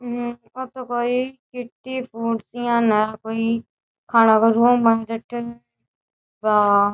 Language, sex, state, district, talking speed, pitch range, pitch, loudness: Rajasthani, female, Rajasthan, Churu, 130 wpm, 220-240 Hz, 230 Hz, -20 LUFS